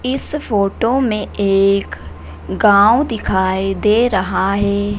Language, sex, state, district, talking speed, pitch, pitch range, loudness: Hindi, female, Madhya Pradesh, Dhar, 110 wpm, 200 Hz, 190-225 Hz, -15 LUFS